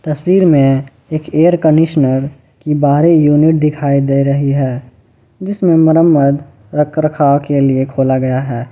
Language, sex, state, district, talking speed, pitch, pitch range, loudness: Hindi, male, Jharkhand, Ranchi, 145 wpm, 145 Hz, 135-155 Hz, -12 LUFS